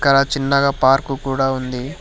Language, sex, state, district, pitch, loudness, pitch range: Telugu, male, Telangana, Hyderabad, 135 Hz, -17 LUFS, 135-140 Hz